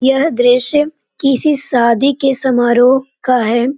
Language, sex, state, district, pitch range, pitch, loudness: Hindi, female, Bihar, Jamui, 245-275 Hz, 265 Hz, -13 LUFS